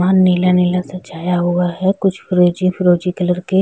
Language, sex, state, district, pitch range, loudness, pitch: Hindi, female, Uttar Pradesh, Jyotiba Phule Nagar, 180-185 Hz, -15 LUFS, 180 Hz